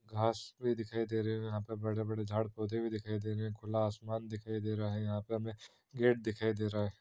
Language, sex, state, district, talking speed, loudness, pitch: Hindi, male, Bihar, East Champaran, 265 wpm, -37 LUFS, 110 Hz